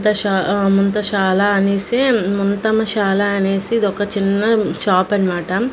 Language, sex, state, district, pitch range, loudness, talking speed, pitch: Telugu, female, Andhra Pradesh, Manyam, 195-210 Hz, -16 LUFS, 105 wpm, 200 Hz